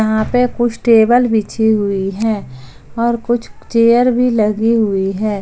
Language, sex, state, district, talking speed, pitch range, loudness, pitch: Hindi, female, Jharkhand, Ranchi, 155 wpm, 210-235 Hz, -14 LUFS, 225 Hz